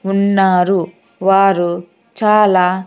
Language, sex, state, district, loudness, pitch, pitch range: Telugu, female, Andhra Pradesh, Sri Satya Sai, -13 LUFS, 190 Hz, 180-195 Hz